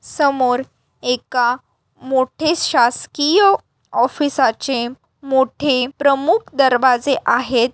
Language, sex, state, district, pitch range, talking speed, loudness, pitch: Marathi, female, Maharashtra, Aurangabad, 245-285 Hz, 70 wpm, -17 LUFS, 265 Hz